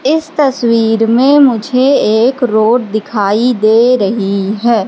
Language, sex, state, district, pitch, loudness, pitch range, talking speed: Hindi, female, Madhya Pradesh, Katni, 235 Hz, -11 LUFS, 215-255 Hz, 125 wpm